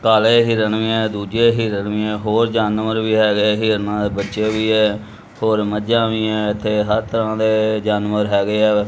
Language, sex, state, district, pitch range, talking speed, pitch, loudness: Punjabi, male, Punjab, Kapurthala, 105-110 Hz, 190 wpm, 110 Hz, -17 LUFS